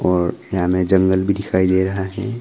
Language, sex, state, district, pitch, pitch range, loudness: Hindi, male, Arunachal Pradesh, Longding, 95 Hz, 90-95 Hz, -18 LUFS